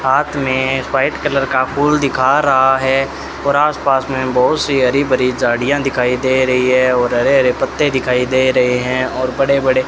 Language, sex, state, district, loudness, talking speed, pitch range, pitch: Hindi, male, Rajasthan, Bikaner, -14 LUFS, 205 wpm, 125-135 Hz, 130 Hz